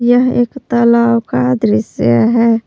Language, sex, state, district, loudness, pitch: Hindi, female, Jharkhand, Palamu, -12 LUFS, 230 Hz